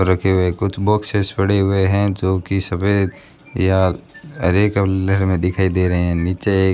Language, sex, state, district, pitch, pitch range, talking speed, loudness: Hindi, male, Rajasthan, Bikaner, 95 Hz, 95-100 Hz, 180 wpm, -18 LUFS